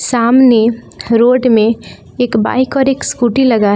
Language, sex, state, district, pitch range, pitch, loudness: Hindi, female, Jharkhand, Palamu, 225-255 Hz, 240 Hz, -11 LUFS